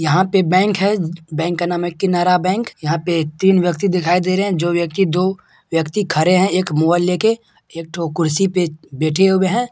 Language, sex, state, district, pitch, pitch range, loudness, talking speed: Hindi, male, Bihar, Purnia, 180 Hz, 165-190 Hz, -17 LUFS, 210 wpm